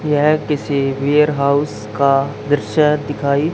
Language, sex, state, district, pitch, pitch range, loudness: Hindi, male, Haryana, Charkhi Dadri, 145 Hz, 140-150 Hz, -16 LUFS